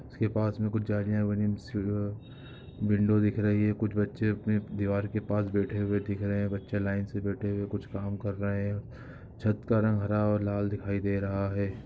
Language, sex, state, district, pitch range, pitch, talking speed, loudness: Hindi, male, Bihar, Samastipur, 100-105 Hz, 105 Hz, 205 wpm, -30 LUFS